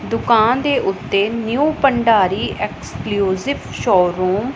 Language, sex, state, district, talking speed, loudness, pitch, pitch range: Punjabi, female, Punjab, Pathankot, 105 wpm, -17 LUFS, 225 Hz, 195-270 Hz